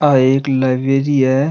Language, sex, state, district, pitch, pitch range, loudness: Rajasthani, male, Rajasthan, Nagaur, 135 Hz, 130-140 Hz, -15 LUFS